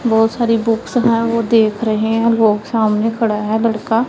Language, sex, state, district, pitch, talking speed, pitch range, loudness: Hindi, female, Punjab, Pathankot, 225 Hz, 190 wpm, 220-230 Hz, -15 LUFS